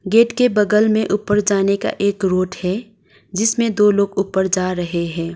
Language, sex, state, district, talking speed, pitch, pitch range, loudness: Hindi, female, Sikkim, Gangtok, 190 wpm, 200 Hz, 190-210 Hz, -17 LUFS